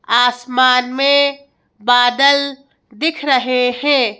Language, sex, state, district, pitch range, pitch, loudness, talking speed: Hindi, female, Madhya Pradesh, Bhopal, 245-280 Hz, 255 Hz, -14 LUFS, 85 wpm